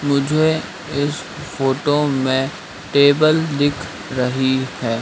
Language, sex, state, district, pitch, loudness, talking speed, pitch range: Hindi, male, Madhya Pradesh, Dhar, 140 Hz, -18 LUFS, 95 wpm, 130-150 Hz